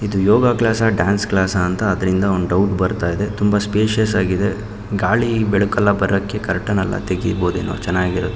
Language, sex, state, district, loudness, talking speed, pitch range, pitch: Kannada, male, Karnataka, Mysore, -18 LUFS, 160 wpm, 95-105 Hz, 100 Hz